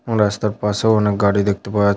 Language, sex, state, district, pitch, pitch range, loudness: Bengali, male, West Bengal, Paschim Medinipur, 105 Hz, 100-105 Hz, -18 LUFS